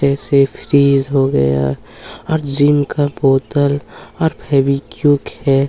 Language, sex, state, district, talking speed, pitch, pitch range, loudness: Hindi, male, Chhattisgarh, Kabirdham, 125 wpm, 140 Hz, 135-145 Hz, -15 LUFS